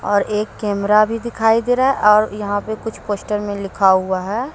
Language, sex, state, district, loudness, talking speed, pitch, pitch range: Hindi, female, Jharkhand, Deoghar, -17 LUFS, 225 wpm, 210 Hz, 205-225 Hz